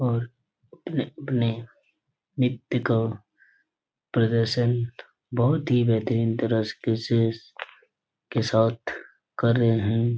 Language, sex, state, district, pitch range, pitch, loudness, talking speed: Hindi, male, Chhattisgarh, Korba, 115-120 Hz, 115 Hz, -25 LUFS, 95 wpm